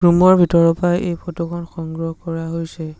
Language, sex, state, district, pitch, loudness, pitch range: Assamese, male, Assam, Sonitpur, 170 Hz, -18 LUFS, 165-175 Hz